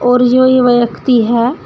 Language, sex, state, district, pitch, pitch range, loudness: Hindi, female, Uttar Pradesh, Shamli, 245 Hz, 240-255 Hz, -11 LUFS